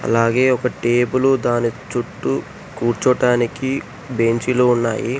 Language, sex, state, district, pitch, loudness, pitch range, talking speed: Telugu, male, Telangana, Hyderabad, 120 Hz, -18 LUFS, 115-130 Hz, 90 wpm